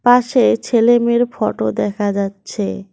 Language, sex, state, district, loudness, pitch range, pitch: Bengali, female, West Bengal, Cooch Behar, -16 LUFS, 200-240 Hz, 225 Hz